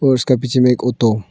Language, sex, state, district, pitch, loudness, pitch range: Hindi, female, Arunachal Pradesh, Longding, 125 Hz, -15 LUFS, 115-130 Hz